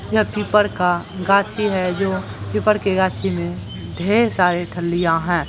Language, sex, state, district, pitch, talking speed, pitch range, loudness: Hindi, female, Bihar, Purnia, 180 Hz, 155 wpm, 165-200 Hz, -19 LUFS